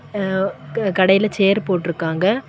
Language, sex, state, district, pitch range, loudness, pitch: Tamil, female, Tamil Nadu, Kanyakumari, 185-205 Hz, -18 LUFS, 195 Hz